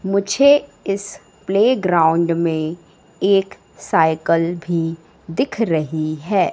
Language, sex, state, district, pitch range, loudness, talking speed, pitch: Hindi, female, Madhya Pradesh, Katni, 165-200 Hz, -18 LUFS, 90 wpm, 175 Hz